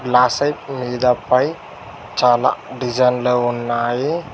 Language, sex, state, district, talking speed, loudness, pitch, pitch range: Telugu, male, Telangana, Mahabubabad, 95 wpm, -18 LUFS, 125 Hz, 120-130 Hz